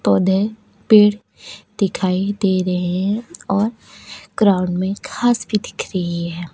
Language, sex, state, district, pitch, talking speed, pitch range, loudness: Hindi, female, Uttar Pradesh, Lucknow, 195 Hz, 130 wpm, 180-210 Hz, -18 LUFS